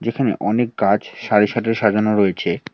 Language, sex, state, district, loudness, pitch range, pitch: Bengali, male, West Bengal, Alipurduar, -18 LUFS, 105-115 Hz, 110 Hz